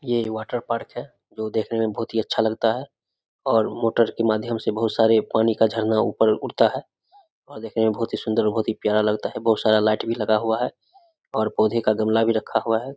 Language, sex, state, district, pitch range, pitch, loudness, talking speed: Hindi, male, Bihar, Samastipur, 110-115 Hz, 110 Hz, -22 LUFS, 235 wpm